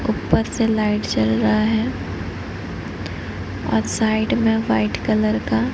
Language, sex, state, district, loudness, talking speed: Hindi, female, Odisha, Nuapada, -21 LUFS, 125 wpm